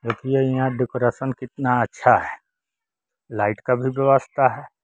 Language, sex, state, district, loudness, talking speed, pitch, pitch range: Hindi, male, Bihar, West Champaran, -21 LUFS, 135 wpm, 125 Hz, 120-130 Hz